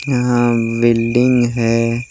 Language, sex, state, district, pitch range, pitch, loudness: Hindi, male, Chhattisgarh, Jashpur, 115-125 Hz, 120 Hz, -15 LUFS